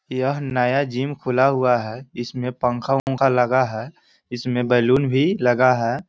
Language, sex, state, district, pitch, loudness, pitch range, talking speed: Hindi, male, Bihar, East Champaran, 125 Hz, -20 LUFS, 125-135 Hz, 165 wpm